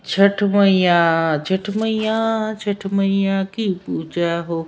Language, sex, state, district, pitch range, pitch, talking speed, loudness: Hindi, male, Bihar, Saran, 175-205 Hz, 195 Hz, 140 wpm, -18 LUFS